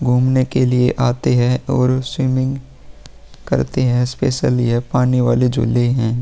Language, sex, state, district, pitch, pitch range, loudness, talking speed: Hindi, male, Bihar, Vaishali, 125 Hz, 120-130 Hz, -17 LUFS, 145 wpm